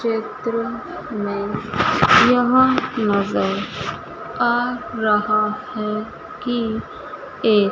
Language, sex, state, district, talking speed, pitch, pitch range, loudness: Hindi, female, Madhya Pradesh, Dhar, 70 wpm, 225 Hz, 210-250 Hz, -20 LUFS